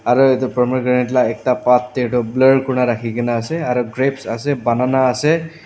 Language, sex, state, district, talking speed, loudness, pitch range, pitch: Nagamese, male, Nagaland, Dimapur, 190 wpm, -17 LUFS, 125-135 Hz, 125 Hz